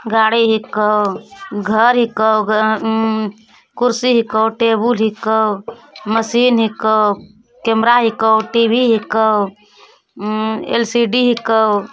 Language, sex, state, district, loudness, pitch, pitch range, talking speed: Hindi, female, Bihar, Begusarai, -15 LUFS, 220 Hz, 215-230 Hz, 105 wpm